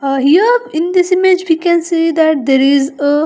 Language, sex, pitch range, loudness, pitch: English, female, 280-360 Hz, -12 LUFS, 325 Hz